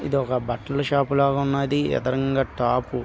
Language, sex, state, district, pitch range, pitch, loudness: Telugu, male, Andhra Pradesh, Visakhapatnam, 125-140 Hz, 140 Hz, -23 LUFS